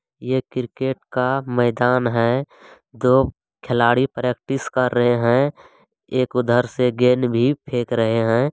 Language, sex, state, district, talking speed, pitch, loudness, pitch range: Maithili, male, Bihar, Supaul, 135 wpm, 125 Hz, -20 LUFS, 120-130 Hz